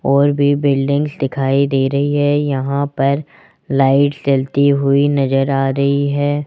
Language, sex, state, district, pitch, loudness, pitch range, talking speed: Hindi, male, Rajasthan, Jaipur, 140 Hz, -15 LUFS, 135-145 Hz, 150 wpm